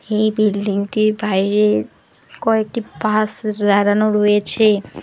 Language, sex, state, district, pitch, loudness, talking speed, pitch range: Bengali, female, West Bengal, Alipurduar, 210 Hz, -17 LUFS, 95 wpm, 205-215 Hz